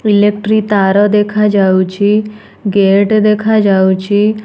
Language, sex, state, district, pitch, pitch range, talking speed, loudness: Odia, female, Odisha, Nuapada, 205 Hz, 200-210 Hz, 70 wpm, -11 LUFS